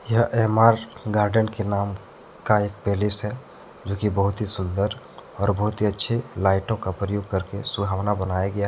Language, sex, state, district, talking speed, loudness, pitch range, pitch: Hindi, male, Jharkhand, Deoghar, 180 wpm, -24 LUFS, 100-110 Hz, 105 Hz